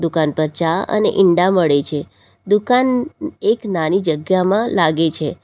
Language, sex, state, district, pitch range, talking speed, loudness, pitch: Gujarati, female, Gujarat, Valsad, 160-210 Hz, 145 wpm, -17 LUFS, 185 Hz